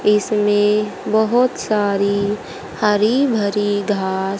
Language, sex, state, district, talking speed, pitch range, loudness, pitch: Hindi, female, Haryana, Rohtak, 80 wpm, 200-215 Hz, -18 LUFS, 210 Hz